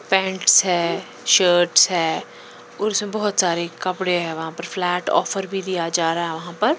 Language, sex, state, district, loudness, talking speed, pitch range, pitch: Hindi, female, Punjab, Pathankot, -20 LUFS, 185 wpm, 170-195 Hz, 180 Hz